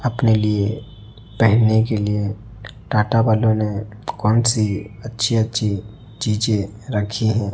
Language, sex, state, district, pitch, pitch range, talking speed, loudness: Hindi, male, Chhattisgarh, Raipur, 110 Hz, 105-115 Hz, 120 wpm, -19 LUFS